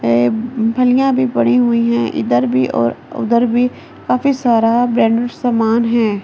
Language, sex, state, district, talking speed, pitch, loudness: Hindi, female, Delhi, New Delhi, 155 wpm, 225 Hz, -15 LUFS